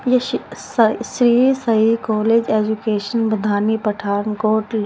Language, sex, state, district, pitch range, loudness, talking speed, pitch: Hindi, female, Punjab, Pathankot, 215-230 Hz, -18 LUFS, 125 wpm, 220 Hz